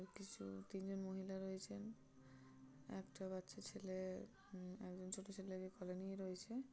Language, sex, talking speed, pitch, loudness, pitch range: Bengali, female, 125 wpm, 190 Hz, -51 LUFS, 185-195 Hz